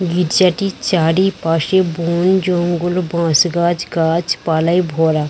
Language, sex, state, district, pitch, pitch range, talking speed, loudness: Bengali, female, West Bengal, Dakshin Dinajpur, 175 Hz, 165-180 Hz, 100 wpm, -15 LUFS